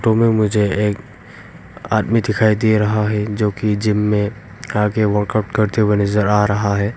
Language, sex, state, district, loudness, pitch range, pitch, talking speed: Hindi, male, Arunachal Pradesh, Longding, -17 LUFS, 105-110 Hz, 105 Hz, 180 wpm